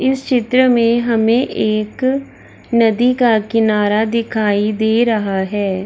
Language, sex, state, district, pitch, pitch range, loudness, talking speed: Hindi, female, Bihar, Darbhanga, 225 Hz, 215-245 Hz, -15 LUFS, 125 wpm